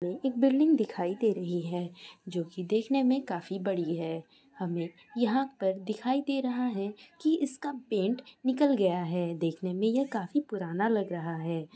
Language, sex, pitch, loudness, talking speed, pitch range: Maithili, female, 205 Hz, -30 LUFS, 175 wpm, 175-260 Hz